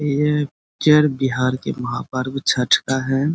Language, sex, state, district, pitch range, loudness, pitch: Hindi, male, Bihar, Muzaffarpur, 130-150 Hz, -19 LUFS, 135 Hz